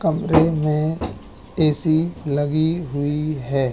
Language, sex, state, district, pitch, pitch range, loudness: Hindi, male, Madhya Pradesh, Katni, 155 Hz, 140-160 Hz, -20 LUFS